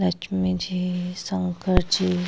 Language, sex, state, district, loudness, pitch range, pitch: Hindi, female, Uttar Pradesh, Hamirpur, -25 LUFS, 180-185 Hz, 180 Hz